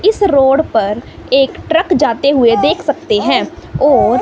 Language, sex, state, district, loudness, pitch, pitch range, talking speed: Hindi, female, Himachal Pradesh, Shimla, -12 LUFS, 285 Hz, 265-335 Hz, 155 wpm